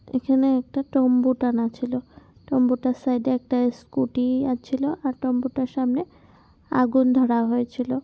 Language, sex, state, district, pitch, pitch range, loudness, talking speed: Bengali, female, West Bengal, Kolkata, 255 Hz, 250-265 Hz, -23 LUFS, 150 wpm